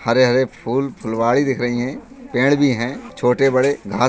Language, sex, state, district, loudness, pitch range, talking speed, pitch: Hindi, male, Uttar Pradesh, Budaun, -18 LUFS, 120-140 Hz, 190 wpm, 130 Hz